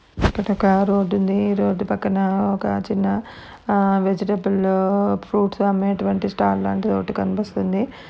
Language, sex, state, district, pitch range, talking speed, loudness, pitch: Telugu, female, Andhra Pradesh, Anantapur, 190-200 Hz, 120 wpm, -20 LUFS, 195 Hz